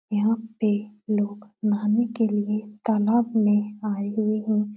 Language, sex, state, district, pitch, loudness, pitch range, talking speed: Hindi, female, Uttar Pradesh, Etah, 210 Hz, -24 LUFS, 210-220 Hz, 140 wpm